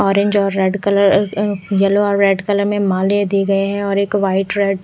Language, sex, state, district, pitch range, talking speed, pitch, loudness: Hindi, female, Odisha, Khordha, 195-205 Hz, 225 wpm, 200 Hz, -16 LUFS